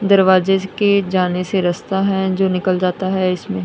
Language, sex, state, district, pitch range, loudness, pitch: Hindi, female, Punjab, Kapurthala, 185-195 Hz, -17 LUFS, 190 Hz